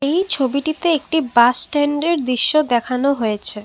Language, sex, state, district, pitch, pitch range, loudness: Bengali, female, Assam, Kamrup Metropolitan, 280 Hz, 250-310 Hz, -17 LUFS